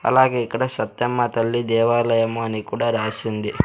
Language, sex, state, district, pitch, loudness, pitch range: Telugu, male, Andhra Pradesh, Sri Satya Sai, 115 Hz, -21 LUFS, 115-120 Hz